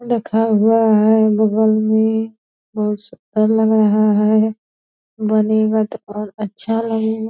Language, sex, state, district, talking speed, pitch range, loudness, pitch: Hindi, female, Bihar, Purnia, 130 wpm, 215-220 Hz, -16 LUFS, 220 Hz